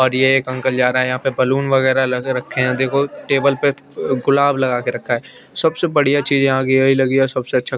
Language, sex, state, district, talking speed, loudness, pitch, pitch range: Hindi, male, Chandigarh, Chandigarh, 225 wpm, -17 LUFS, 130 Hz, 130-140 Hz